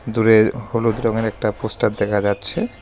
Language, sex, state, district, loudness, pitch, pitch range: Bengali, male, West Bengal, Alipurduar, -19 LUFS, 110 Hz, 105-115 Hz